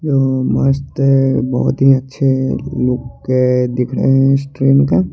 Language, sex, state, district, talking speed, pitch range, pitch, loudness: Hindi, male, Chandigarh, Chandigarh, 130 wpm, 130-135 Hz, 135 Hz, -14 LUFS